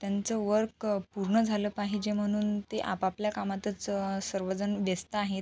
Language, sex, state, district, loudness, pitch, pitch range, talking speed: Marathi, female, Maharashtra, Sindhudurg, -31 LUFS, 205 Hz, 195-210 Hz, 155 wpm